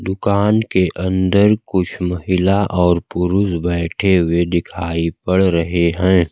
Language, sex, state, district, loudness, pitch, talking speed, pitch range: Hindi, male, Bihar, Kaimur, -16 LUFS, 90 Hz, 125 wpm, 85-95 Hz